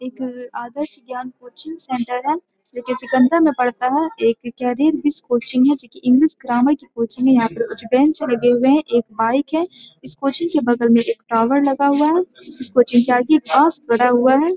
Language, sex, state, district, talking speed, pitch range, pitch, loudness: Hindi, female, Bihar, Jamui, 215 wpm, 245-295 Hz, 255 Hz, -17 LUFS